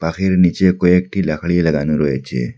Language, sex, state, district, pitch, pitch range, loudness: Bengali, male, Assam, Hailakandi, 85 Hz, 75-90 Hz, -16 LUFS